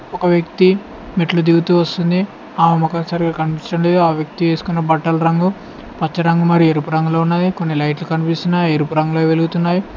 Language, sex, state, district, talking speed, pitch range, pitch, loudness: Telugu, male, Telangana, Hyderabad, 170 wpm, 160-175 Hz, 170 Hz, -16 LUFS